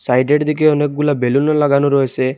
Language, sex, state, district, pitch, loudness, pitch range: Bengali, male, Assam, Hailakandi, 145 Hz, -15 LUFS, 130-150 Hz